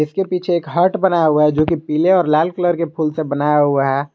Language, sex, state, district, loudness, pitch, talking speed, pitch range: Hindi, male, Jharkhand, Garhwa, -16 LUFS, 155 Hz, 260 wpm, 150-175 Hz